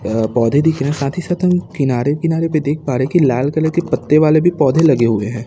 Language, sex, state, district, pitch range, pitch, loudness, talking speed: Hindi, male, Chhattisgarh, Raipur, 125-165 Hz, 145 Hz, -15 LUFS, 295 wpm